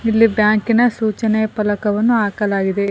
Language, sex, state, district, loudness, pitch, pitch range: Kannada, female, Karnataka, Koppal, -16 LUFS, 215 Hz, 205-225 Hz